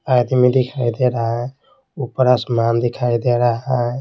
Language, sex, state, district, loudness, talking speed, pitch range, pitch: Hindi, male, Bihar, Patna, -18 LUFS, 165 wpm, 120-130 Hz, 125 Hz